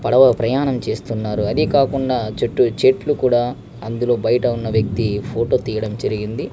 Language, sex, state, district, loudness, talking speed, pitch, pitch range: Telugu, male, Andhra Pradesh, Krishna, -18 LUFS, 140 wpm, 120 Hz, 110-130 Hz